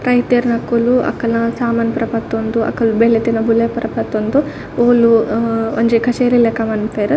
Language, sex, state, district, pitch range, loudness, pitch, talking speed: Tulu, female, Karnataka, Dakshina Kannada, 225-240 Hz, -15 LUFS, 230 Hz, 140 wpm